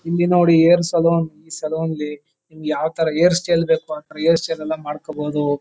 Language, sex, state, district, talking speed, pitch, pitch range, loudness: Kannada, male, Karnataka, Chamarajanagar, 190 wpm, 160 Hz, 155-165 Hz, -19 LUFS